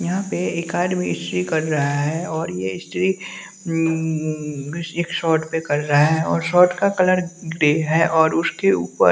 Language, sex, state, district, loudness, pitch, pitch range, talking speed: Hindi, male, Bihar, West Champaran, -20 LUFS, 165 Hz, 155-180 Hz, 175 wpm